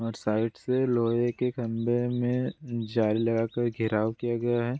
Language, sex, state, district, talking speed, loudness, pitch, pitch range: Hindi, male, Bihar, Bhagalpur, 175 wpm, -28 LUFS, 120 Hz, 115-120 Hz